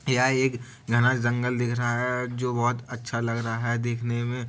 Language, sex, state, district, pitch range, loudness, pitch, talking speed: Hindi, male, Uttar Pradesh, Jalaun, 120-125 Hz, -26 LUFS, 120 Hz, 215 wpm